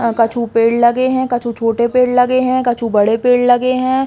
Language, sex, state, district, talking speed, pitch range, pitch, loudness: Bundeli, female, Uttar Pradesh, Hamirpur, 205 wpm, 230-255 Hz, 245 Hz, -14 LUFS